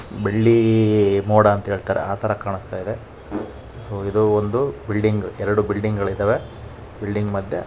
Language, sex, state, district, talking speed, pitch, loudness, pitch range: Kannada, male, Karnataka, Raichur, 125 wpm, 105 Hz, -20 LUFS, 100-110 Hz